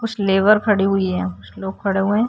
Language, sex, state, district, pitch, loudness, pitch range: Hindi, female, Uttar Pradesh, Jyotiba Phule Nagar, 195 Hz, -18 LUFS, 190-210 Hz